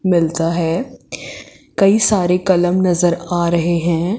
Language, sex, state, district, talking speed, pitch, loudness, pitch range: Hindi, female, Chandigarh, Chandigarh, 130 wpm, 175 Hz, -16 LUFS, 170-185 Hz